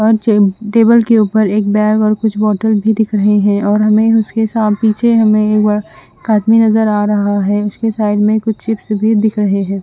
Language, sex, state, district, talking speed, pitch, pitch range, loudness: Hindi, female, Chandigarh, Chandigarh, 195 wpm, 215 Hz, 210-220 Hz, -12 LUFS